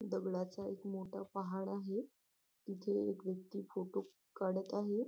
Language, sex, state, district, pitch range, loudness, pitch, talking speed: Marathi, female, Maharashtra, Nagpur, 185-200 Hz, -42 LUFS, 195 Hz, 120 wpm